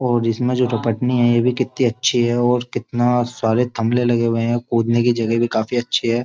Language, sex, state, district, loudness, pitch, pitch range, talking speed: Hindi, male, Uttar Pradesh, Jyotiba Phule Nagar, -18 LUFS, 120 Hz, 115-125 Hz, 230 wpm